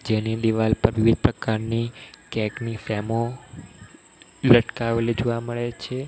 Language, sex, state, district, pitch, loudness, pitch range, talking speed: Gujarati, male, Gujarat, Valsad, 115 Hz, -23 LUFS, 110-120 Hz, 120 wpm